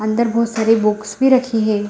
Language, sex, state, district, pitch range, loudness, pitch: Hindi, female, Bihar, Gaya, 215-235 Hz, -16 LUFS, 220 Hz